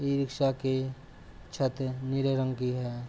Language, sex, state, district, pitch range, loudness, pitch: Hindi, male, Uttar Pradesh, Gorakhpur, 125-135 Hz, -31 LUFS, 130 Hz